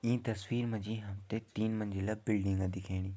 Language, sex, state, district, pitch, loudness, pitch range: Garhwali, male, Uttarakhand, Tehri Garhwal, 105 Hz, -36 LUFS, 95-110 Hz